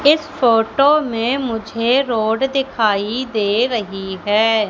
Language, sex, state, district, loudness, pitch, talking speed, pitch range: Hindi, female, Madhya Pradesh, Katni, -17 LUFS, 230 Hz, 115 wpm, 215-265 Hz